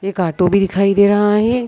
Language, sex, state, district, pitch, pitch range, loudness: Hindi, female, Bihar, East Champaran, 200 Hz, 195-205 Hz, -14 LUFS